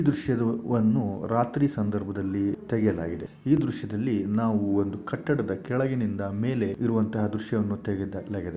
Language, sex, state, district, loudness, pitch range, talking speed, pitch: Kannada, male, Karnataka, Shimoga, -27 LUFS, 100-120 Hz, 110 wpm, 110 Hz